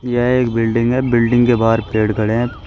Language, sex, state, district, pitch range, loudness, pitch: Hindi, male, Uttar Pradesh, Shamli, 115-120 Hz, -15 LUFS, 115 Hz